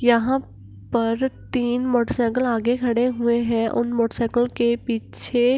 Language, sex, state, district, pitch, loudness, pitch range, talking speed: Hindi, female, Bihar, Gopalganj, 240 Hz, -22 LUFS, 235-245 Hz, 160 wpm